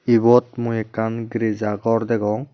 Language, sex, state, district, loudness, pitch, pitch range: Chakma, male, Tripura, Unakoti, -20 LUFS, 115 Hz, 110-120 Hz